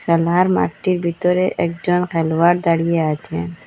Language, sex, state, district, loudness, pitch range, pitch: Bengali, female, Assam, Hailakandi, -18 LUFS, 165-180 Hz, 170 Hz